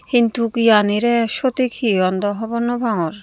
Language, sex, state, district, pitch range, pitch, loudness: Chakma, female, Tripura, Unakoti, 205-235 Hz, 230 Hz, -18 LUFS